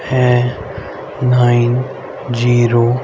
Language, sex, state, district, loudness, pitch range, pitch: Hindi, male, Haryana, Rohtak, -14 LUFS, 120-125 Hz, 120 Hz